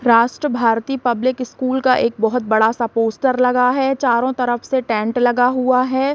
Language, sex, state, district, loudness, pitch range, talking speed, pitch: Hindi, female, Bihar, Saran, -17 LUFS, 235-260 Hz, 185 wpm, 250 Hz